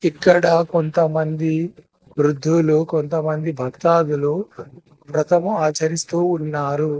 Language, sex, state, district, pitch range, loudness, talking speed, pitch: Telugu, male, Telangana, Hyderabad, 155-170 Hz, -19 LUFS, 70 wpm, 160 Hz